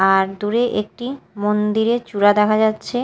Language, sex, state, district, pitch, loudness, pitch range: Bengali, female, Odisha, Malkangiri, 215 Hz, -18 LUFS, 205-240 Hz